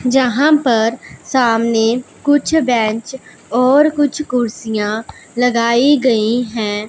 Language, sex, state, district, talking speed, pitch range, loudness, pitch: Hindi, female, Punjab, Pathankot, 95 wpm, 225-265 Hz, -15 LUFS, 245 Hz